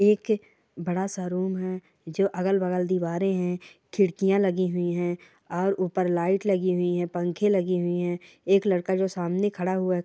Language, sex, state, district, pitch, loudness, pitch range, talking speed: Hindi, female, Chhattisgarh, Sarguja, 185 Hz, -26 LUFS, 175-195 Hz, 180 wpm